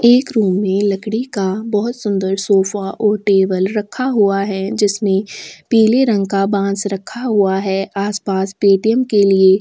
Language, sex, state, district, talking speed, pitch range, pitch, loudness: Hindi, female, Chhattisgarh, Sukma, 155 wpm, 195-215 Hz, 200 Hz, -16 LUFS